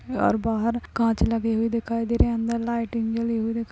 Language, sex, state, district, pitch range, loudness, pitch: Hindi, female, Uttar Pradesh, Gorakhpur, 225-230 Hz, -24 LUFS, 230 Hz